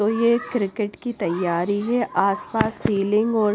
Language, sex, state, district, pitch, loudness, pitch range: Hindi, female, Himachal Pradesh, Shimla, 210 Hz, -22 LUFS, 200-230 Hz